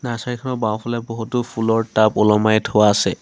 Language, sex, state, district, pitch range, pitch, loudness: Assamese, male, Assam, Sonitpur, 110-120 Hz, 115 Hz, -18 LUFS